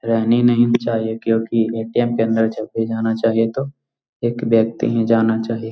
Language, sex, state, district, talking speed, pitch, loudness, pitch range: Magahi, male, Bihar, Jahanabad, 180 wpm, 115 Hz, -18 LUFS, 115-120 Hz